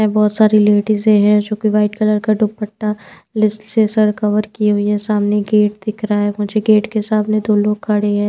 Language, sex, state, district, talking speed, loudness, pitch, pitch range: Hindi, female, Bihar, Patna, 215 wpm, -15 LUFS, 210 Hz, 210-215 Hz